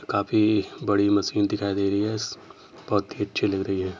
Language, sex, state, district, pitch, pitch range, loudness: Hindi, male, Uttar Pradesh, Etah, 100 Hz, 100-105 Hz, -24 LUFS